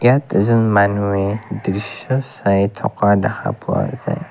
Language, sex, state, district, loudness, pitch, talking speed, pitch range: Assamese, male, Assam, Kamrup Metropolitan, -18 LUFS, 110 Hz, 125 wpm, 100-130 Hz